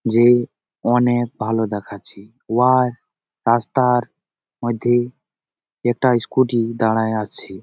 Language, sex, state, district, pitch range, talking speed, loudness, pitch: Bengali, male, West Bengal, Jalpaiguri, 110-125 Hz, 95 wpm, -19 LUFS, 120 Hz